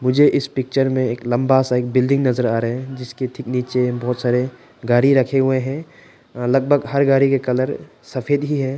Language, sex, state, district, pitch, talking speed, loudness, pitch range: Hindi, male, Arunachal Pradesh, Papum Pare, 130 Hz, 205 wpm, -18 LUFS, 125-135 Hz